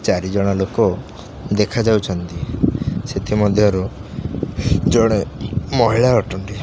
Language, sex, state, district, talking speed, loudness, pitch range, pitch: Odia, male, Odisha, Khordha, 100 wpm, -18 LUFS, 95-110 Hz, 105 Hz